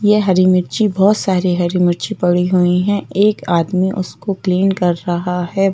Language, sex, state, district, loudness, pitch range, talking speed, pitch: Hindi, female, Madhya Pradesh, Bhopal, -15 LUFS, 180-195 Hz, 180 wpm, 185 Hz